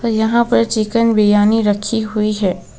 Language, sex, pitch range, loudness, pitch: Hindi, female, 205-230 Hz, -15 LUFS, 215 Hz